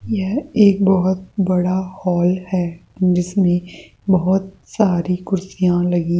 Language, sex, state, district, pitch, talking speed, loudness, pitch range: Hindi, female, Rajasthan, Jaipur, 185 Hz, 115 wpm, -18 LUFS, 180-190 Hz